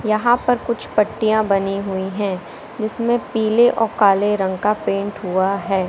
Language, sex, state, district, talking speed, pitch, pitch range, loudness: Hindi, female, Madhya Pradesh, Katni, 165 wpm, 210 Hz, 195-220 Hz, -19 LUFS